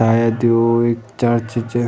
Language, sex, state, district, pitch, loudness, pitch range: Garhwali, male, Uttarakhand, Tehri Garhwal, 115 Hz, -17 LUFS, 115-120 Hz